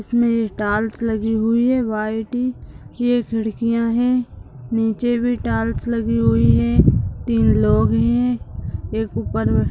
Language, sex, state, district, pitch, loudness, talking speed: Hindi, female, Bihar, Begusarai, 210 Hz, -19 LUFS, 130 wpm